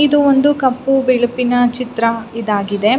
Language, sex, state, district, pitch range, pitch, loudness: Kannada, female, Karnataka, Raichur, 230-270 Hz, 245 Hz, -15 LUFS